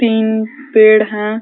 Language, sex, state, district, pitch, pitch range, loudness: Hindi, female, Uttar Pradesh, Ghazipur, 220 Hz, 215-225 Hz, -12 LUFS